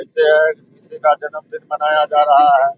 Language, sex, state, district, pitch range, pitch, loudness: Hindi, male, Bihar, Saharsa, 150-235 Hz, 155 Hz, -14 LUFS